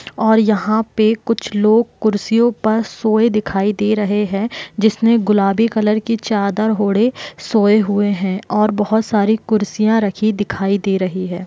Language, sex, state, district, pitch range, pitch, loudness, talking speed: Hindi, female, Bihar, Muzaffarpur, 205-220 Hz, 215 Hz, -16 LUFS, 155 wpm